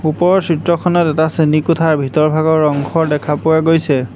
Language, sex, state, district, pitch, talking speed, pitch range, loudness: Assamese, male, Assam, Hailakandi, 160 Hz, 145 wpm, 150-165 Hz, -14 LUFS